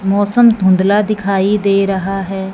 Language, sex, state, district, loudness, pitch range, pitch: Hindi, male, Punjab, Fazilka, -13 LUFS, 195-205 Hz, 195 Hz